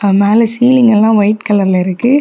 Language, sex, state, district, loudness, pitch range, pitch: Tamil, female, Tamil Nadu, Kanyakumari, -10 LUFS, 200-240 Hz, 215 Hz